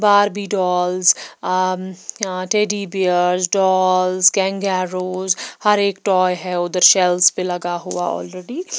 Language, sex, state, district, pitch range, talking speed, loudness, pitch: Hindi, female, Himachal Pradesh, Shimla, 180-195 Hz, 115 wpm, -17 LUFS, 185 Hz